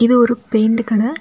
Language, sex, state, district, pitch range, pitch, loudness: Tamil, female, Tamil Nadu, Kanyakumari, 225-240 Hz, 235 Hz, -15 LUFS